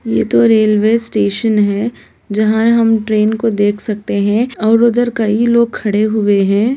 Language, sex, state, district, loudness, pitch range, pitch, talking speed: Bhojpuri, female, Bihar, Saran, -13 LUFS, 210-230 Hz, 215 Hz, 170 wpm